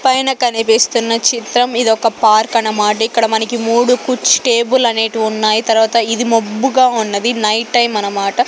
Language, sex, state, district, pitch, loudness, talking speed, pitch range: Telugu, female, Andhra Pradesh, Sri Satya Sai, 230 Hz, -13 LUFS, 140 wpm, 220-240 Hz